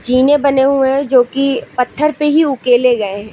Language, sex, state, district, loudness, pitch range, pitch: Hindi, female, Uttar Pradesh, Lucknow, -13 LUFS, 250-280 Hz, 265 Hz